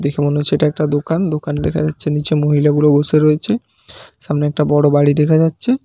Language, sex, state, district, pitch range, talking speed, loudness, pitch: Bengali, male, West Bengal, Paschim Medinipur, 145-155 Hz, 195 wpm, -15 LUFS, 150 Hz